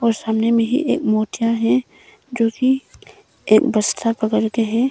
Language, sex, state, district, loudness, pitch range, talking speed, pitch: Hindi, female, Arunachal Pradesh, Longding, -18 LUFS, 220-245 Hz, 170 wpm, 230 Hz